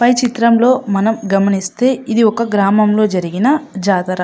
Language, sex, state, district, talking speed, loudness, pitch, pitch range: Telugu, female, Andhra Pradesh, Anantapur, 125 wpm, -14 LUFS, 215 Hz, 195-240 Hz